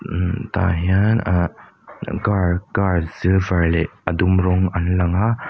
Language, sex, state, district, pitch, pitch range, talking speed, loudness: Mizo, male, Mizoram, Aizawl, 90 Hz, 85-100 Hz, 155 wpm, -19 LUFS